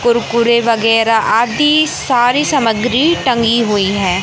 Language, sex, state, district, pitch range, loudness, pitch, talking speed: Hindi, male, Madhya Pradesh, Katni, 225-250 Hz, -12 LUFS, 235 Hz, 115 wpm